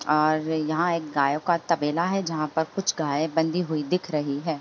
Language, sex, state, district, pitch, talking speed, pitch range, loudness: Hindi, female, Bihar, Bhagalpur, 160 Hz, 220 wpm, 150-170 Hz, -25 LUFS